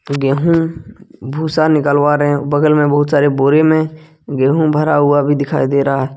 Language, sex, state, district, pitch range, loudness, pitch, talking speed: Hindi, male, Jharkhand, Ranchi, 140-155 Hz, -13 LUFS, 145 Hz, 165 wpm